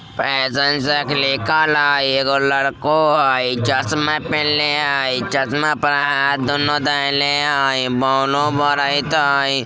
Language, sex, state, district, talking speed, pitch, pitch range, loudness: Maithili, male, Bihar, Vaishali, 120 wpm, 140 Hz, 135-145 Hz, -17 LUFS